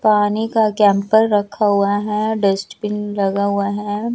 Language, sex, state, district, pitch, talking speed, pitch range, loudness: Hindi, female, Chandigarh, Chandigarh, 205 Hz, 145 wpm, 200-215 Hz, -17 LUFS